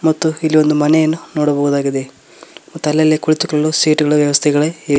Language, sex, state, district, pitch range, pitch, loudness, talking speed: Kannada, male, Karnataka, Koppal, 150-155 Hz, 155 Hz, -14 LUFS, 130 wpm